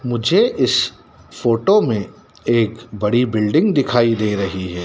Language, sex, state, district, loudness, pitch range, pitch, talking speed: Hindi, male, Madhya Pradesh, Dhar, -17 LUFS, 105-120 Hz, 115 Hz, 135 wpm